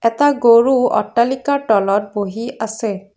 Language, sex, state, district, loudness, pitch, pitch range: Assamese, female, Assam, Kamrup Metropolitan, -16 LUFS, 230 Hz, 210-255 Hz